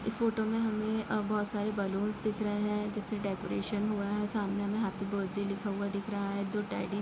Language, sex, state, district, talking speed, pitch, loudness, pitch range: Hindi, female, Bihar, Samastipur, 220 wpm, 210 Hz, -34 LUFS, 200-215 Hz